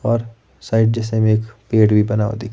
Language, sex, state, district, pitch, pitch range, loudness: Hindi, male, Himachal Pradesh, Shimla, 110 Hz, 105-115 Hz, -17 LUFS